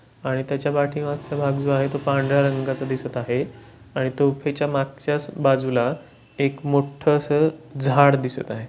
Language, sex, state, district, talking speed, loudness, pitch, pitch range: Marathi, male, Maharashtra, Pune, 150 wpm, -22 LUFS, 140 Hz, 130-145 Hz